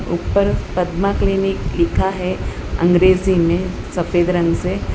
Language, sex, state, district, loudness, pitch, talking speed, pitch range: Hindi, female, Gujarat, Valsad, -18 LUFS, 180 Hz, 120 wpm, 170-185 Hz